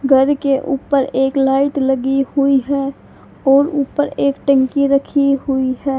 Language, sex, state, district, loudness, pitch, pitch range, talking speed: Hindi, female, Haryana, Charkhi Dadri, -16 LUFS, 275 Hz, 270-280 Hz, 150 wpm